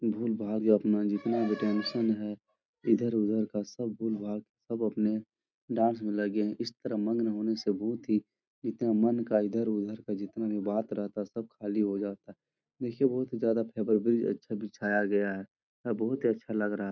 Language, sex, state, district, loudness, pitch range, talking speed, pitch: Hindi, male, Bihar, Jahanabad, -31 LUFS, 105-115 Hz, 200 wpm, 110 Hz